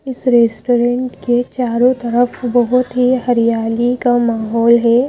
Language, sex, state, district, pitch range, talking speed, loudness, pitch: Hindi, female, Madhya Pradesh, Bhopal, 235-250 Hz, 130 wpm, -14 LUFS, 245 Hz